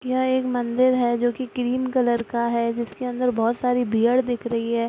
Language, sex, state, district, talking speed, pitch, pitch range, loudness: Hindi, female, Bihar, Araria, 220 wpm, 245 Hz, 235-255 Hz, -22 LUFS